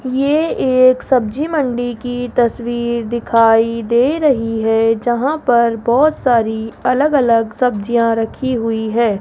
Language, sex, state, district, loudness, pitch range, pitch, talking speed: Hindi, female, Rajasthan, Jaipur, -15 LUFS, 225-255 Hz, 240 Hz, 130 wpm